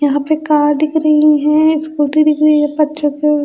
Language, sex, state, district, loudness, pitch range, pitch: Hindi, female, Bihar, Katihar, -13 LUFS, 295-305 Hz, 300 Hz